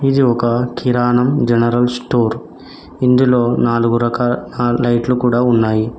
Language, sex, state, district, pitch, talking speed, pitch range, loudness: Telugu, male, Telangana, Mahabubabad, 120 Hz, 120 wpm, 120-125 Hz, -15 LUFS